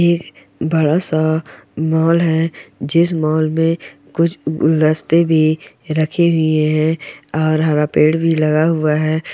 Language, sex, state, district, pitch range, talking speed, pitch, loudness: Hindi, female, Uttar Pradesh, Gorakhpur, 155-165 Hz, 135 wpm, 160 Hz, -16 LUFS